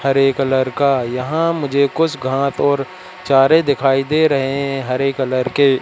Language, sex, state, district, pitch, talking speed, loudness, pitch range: Hindi, male, Madhya Pradesh, Katni, 135 Hz, 165 wpm, -16 LUFS, 135-145 Hz